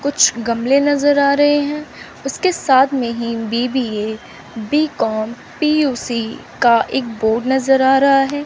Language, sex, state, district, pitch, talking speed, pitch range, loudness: Hindi, female, Chandigarh, Chandigarh, 265 Hz, 150 wpm, 235-285 Hz, -16 LUFS